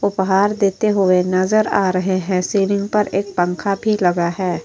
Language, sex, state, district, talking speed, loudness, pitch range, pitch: Hindi, female, Uttar Pradesh, Etah, 180 wpm, -17 LUFS, 185-200 Hz, 195 Hz